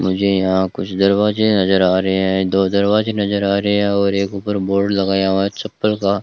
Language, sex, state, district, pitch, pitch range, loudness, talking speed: Hindi, male, Rajasthan, Bikaner, 100 Hz, 95-100 Hz, -17 LUFS, 220 wpm